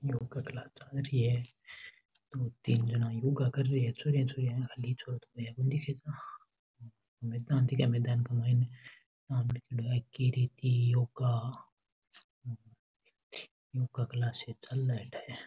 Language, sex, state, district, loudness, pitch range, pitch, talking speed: Rajasthani, male, Rajasthan, Nagaur, -33 LUFS, 120-135 Hz, 125 Hz, 115 wpm